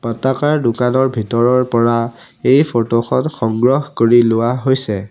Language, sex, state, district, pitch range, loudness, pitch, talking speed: Assamese, male, Assam, Sonitpur, 115-130 Hz, -15 LUFS, 120 Hz, 115 wpm